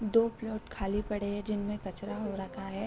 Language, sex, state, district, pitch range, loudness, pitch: Hindi, female, Bihar, Sitamarhi, 200-215 Hz, -34 LUFS, 210 Hz